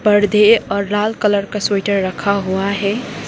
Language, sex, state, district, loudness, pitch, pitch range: Hindi, female, Sikkim, Gangtok, -16 LUFS, 205 Hz, 200-210 Hz